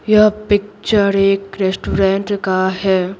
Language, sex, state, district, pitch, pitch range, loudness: Hindi, female, Bihar, Patna, 195 Hz, 190-205 Hz, -16 LUFS